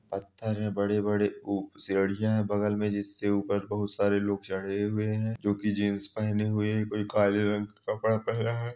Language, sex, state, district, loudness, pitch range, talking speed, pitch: Hindi, male, Bihar, Supaul, -29 LUFS, 100-105 Hz, 200 wpm, 105 Hz